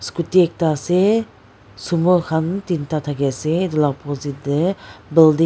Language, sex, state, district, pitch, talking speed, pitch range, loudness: Nagamese, female, Nagaland, Dimapur, 160 Hz, 165 wpm, 145-175 Hz, -19 LUFS